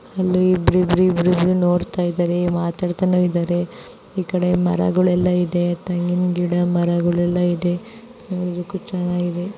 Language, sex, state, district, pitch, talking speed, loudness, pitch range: Kannada, female, Karnataka, Bijapur, 175 Hz, 115 wpm, -19 LUFS, 175-180 Hz